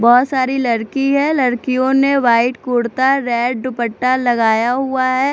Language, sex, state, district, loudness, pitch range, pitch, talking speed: Hindi, female, Chandigarh, Chandigarh, -15 LUFS, 240-265 Hz, 255 Hz, 145 wpm